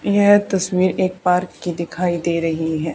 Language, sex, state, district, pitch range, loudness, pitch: Hindi, female, Haryana, Charkhi Dadri, 170-185 Hz, -18 LUFS, 180 Hz